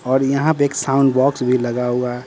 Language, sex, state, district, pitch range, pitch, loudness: Hindi, male, Bihar, Patna, 125-140 Hz, 130 Hz, -17 LUFS